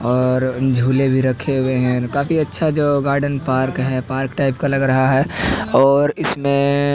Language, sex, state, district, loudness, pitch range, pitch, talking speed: Hindi, male, Haryana, Rohtak, -17 LUFS, 130-140 Hz, 135 Hz, 175 wpm